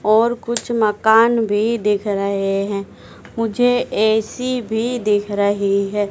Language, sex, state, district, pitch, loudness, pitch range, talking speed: Hindi, female, Madhya Pradesh, Dhar, 215 Hz, -18 LUFS, 205-235 Hz, 130 wpm